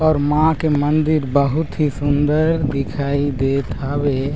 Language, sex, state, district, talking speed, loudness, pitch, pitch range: Chhattisgarhi, male, Chhattisgarh, Raigarh, 135 wpm, -18 LUFS, 145 Hz, 140-155 Hz